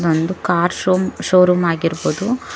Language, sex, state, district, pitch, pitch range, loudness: Kannada, female, Karnataka, Bangalore, 180 Hz, 165-185 Hz, -17 LUFS